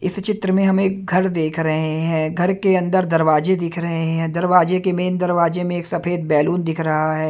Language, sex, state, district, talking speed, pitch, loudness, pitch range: Hindi, male, Chhattisgarh, Raipur, 220 wpm, 175 Hz, -19 LUFS, 160-185 Hz